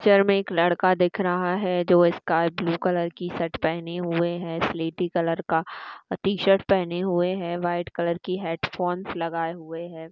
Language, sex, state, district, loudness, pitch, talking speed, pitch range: Hindi, female, Chhattisgarh, Bastar, -25 LUFS, 175 Hz, 185 wpm, 170-185 Hz